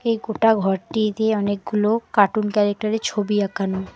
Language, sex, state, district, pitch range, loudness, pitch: Bengali, female, West Bengal, Alipurduar, 205-220 Hz, -21 LUFS, 210 Hz